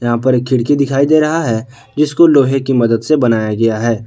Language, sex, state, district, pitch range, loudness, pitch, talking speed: Hindi, male, Jharkhand, Palamu, 115-145 Hz, -13 LUFS, 130 Hz, 235 wpm